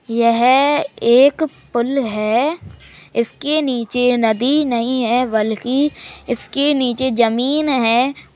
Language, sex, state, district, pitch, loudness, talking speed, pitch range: Hindi, male, Uttar Pradesh, Jalaun, 250 Hz, -16 LUFS, 100 wpm, 235-280 Hz